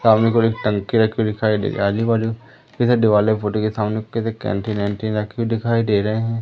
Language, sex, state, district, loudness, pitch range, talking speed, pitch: Hindi, female, Madhya Pradesh, Umaria, -19 LUFS, 105-115 Hz, 195 wpm, 110 Hz